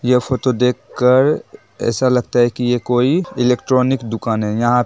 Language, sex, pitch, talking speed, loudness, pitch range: Bhojpuri, male, 125 Hz, 175 wpm, -16 LUFS, 120-130 Hz